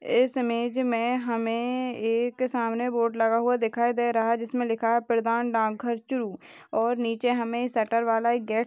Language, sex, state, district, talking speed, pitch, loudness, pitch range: Hindi, female, Rajasthan, Churu, 180 wpm, 235 Hz, -26 LUFS, 230-245 Hz